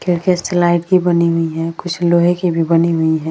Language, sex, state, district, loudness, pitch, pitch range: Hindi, female, Bihar, Vaishali, -15 LUFS, 170 Hz, 165-175 Hz